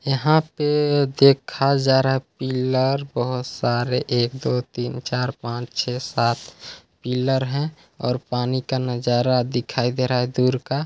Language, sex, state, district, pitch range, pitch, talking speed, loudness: Hindi, male, Chhattisgarh, Balrampur, 125-135 Hz, 130 Hz, 155 wpm, -22 LUFS